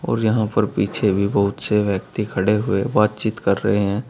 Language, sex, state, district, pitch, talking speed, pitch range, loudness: Hindi, male, Uttar Pradesh, Saharanpur, 105 Hz, 205 wpm, 100-110 Hz, -20 LUFS